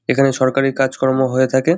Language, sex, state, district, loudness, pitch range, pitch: Bengali, male, West Bengal, Jhargram, -16 LUFS, 130-135 Hz, 130 Hz